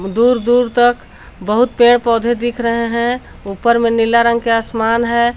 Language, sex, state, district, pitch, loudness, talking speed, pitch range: Hindi, female, Jharkhand, Garhwa, 235 Hz, -14 LUFS, 180 wpm, 230-240 Hz